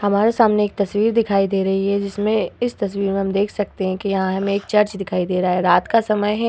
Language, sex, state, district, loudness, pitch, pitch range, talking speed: Hindi, female, Uttar Pradesh, Hamirpur, -19 LUFS, 200 Hz, 195-210 Hz, 270 wpm